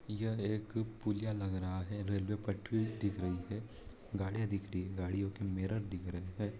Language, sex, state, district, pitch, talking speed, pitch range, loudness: Hindi, male, Chhattisgarh, Raigarh, 100 Hz, 190 wpm, 95-110 Hz, -39 LUFS